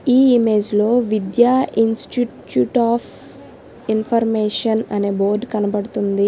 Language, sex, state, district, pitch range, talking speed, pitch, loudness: Telugu, female, Telangana, Hyderabad, 205-235 Hz, 95 wpm, 220 Hz, -18 LUFS